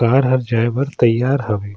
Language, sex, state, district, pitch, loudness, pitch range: Surgujia, male, Chhattisgarh, Sarguja, 120 Hz, -17 LUFS, 115-135 Hz